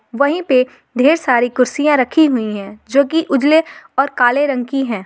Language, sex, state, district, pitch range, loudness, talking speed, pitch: Hindi, female, Jharkhand, Garhwa, 245-290 Hz, -15 LUFS, 190 wpm, 270 Hz